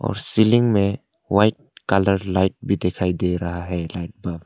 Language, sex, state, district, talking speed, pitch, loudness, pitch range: Hindi, male, Arunachal Pradesh, Longding, 150 wpm, 95 Hz, -21 LUFS, 90-105 Hz